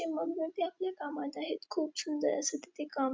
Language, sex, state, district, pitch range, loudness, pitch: Marathi, female, Maharashtra, Dhule, 300-340 Hz, -36 LUFS, 325 Hz